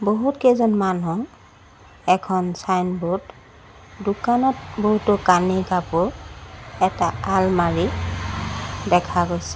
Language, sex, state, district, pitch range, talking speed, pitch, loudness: Assamese, female, Assam, Sonitpur, 175-210 Hz, 80 wpm, 185 Hz, -21 LUFS